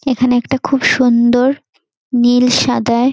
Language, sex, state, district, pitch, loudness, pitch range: Bengali, female, West Bengal, North 24 Parganas, 250 Hz, -13 LUFS, 245-265 Hz